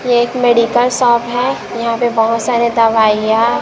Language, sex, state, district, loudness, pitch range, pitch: Hindi, female, Chhattisgarh, Raipur, -13 LUFS, 230-240 Hz, 235 Hz